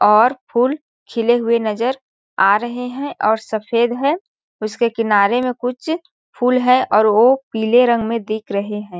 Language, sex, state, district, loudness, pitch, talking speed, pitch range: Hindi, female, Chhattisgarh, Balrampur, -17 LUFS, 235 Hz, 165 wpm, 215-255 Hz